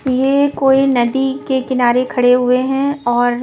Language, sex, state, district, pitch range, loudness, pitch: Hindi, female, Punjab, Pathankot, 245-270 Hz, -14 LUFS, 260 Hz